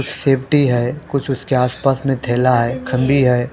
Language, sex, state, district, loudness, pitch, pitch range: Hindi, male, Punjab, Pathankot, -17 LUFS, 130 Hz, 125-135 Hz